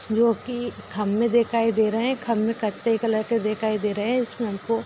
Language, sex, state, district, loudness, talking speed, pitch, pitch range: Hindi, female, Bihar, Darbhanga, -24 LUFS, 220 wpm, 225 Hz, 215-235 Hz